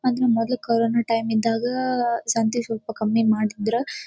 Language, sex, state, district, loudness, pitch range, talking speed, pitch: Kannada, female, Karnataka, Dharwad, -22 LUFS, 225-240 Hz, 135 wpm, 230 Hz